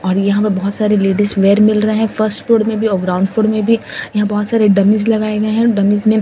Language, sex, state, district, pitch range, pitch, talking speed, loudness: Hindi, female, Delhi, New Delhi, 200-220 Hz, 210 Hz, 270 wpm, -14 LUFS